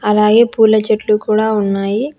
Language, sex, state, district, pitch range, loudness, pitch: Telugu, female, Telangana, Hyderabad, 210-220 Hz, -13 LUFS, 215 Hz